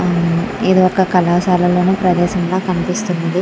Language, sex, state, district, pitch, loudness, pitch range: Telugu, female, Andhra Pradesh, Krishna, 180 Hz, -15 LUFS, 175-185 Hz